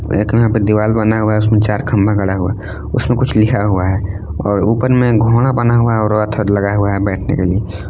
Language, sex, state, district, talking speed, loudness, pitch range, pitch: Hindi, male, Jharkhand, Palamu, 250 wpm, -14 LUFS, 100-115 Hz, 105 Hz